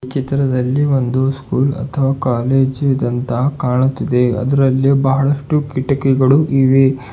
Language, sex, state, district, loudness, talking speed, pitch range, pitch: Kannada, male, Karnataka, Bidar, -15 LUFS, 95 wpm, 130-140 Hz, 135 Hz